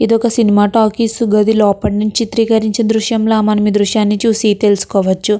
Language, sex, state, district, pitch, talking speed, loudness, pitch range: Telugu, female, Andhra Pradesh, Krishna, 215 Hz, 165 wpm, -13 LUFS, 210-225 Hz